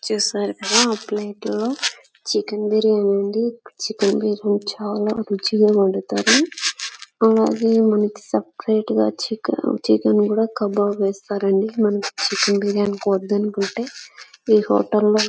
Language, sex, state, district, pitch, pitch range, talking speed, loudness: Telugu, female, Andhra Pradesh, Anantapur, 210 Hz, 200-220 Hz, 115 wpm, -20 LUFS